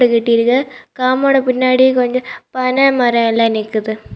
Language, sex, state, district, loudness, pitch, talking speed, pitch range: Tamil, female, Tamil Nadu, Kanyakumari, -14 LUFS, 255 Hz, 85 wpm, 230-260 Hz